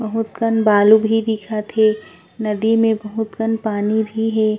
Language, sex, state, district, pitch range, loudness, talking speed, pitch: Chhattisgarhi, female, Chhattisgarh, Korba, 215-225 Hz, -18 LUFS, 170 wpm, 220 Hz